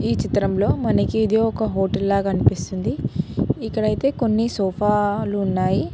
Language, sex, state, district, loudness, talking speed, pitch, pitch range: Telugu, female, Telangana, Hyderabad, -21 LUFS, 120 wpm, 210 Hz, 195-220 Hz